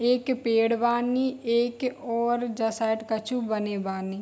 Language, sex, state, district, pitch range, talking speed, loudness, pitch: Hindi, female, Bihar, Darbhanga, 220-245 Hz, 140 wpm, -26 LUFS, 235 Hz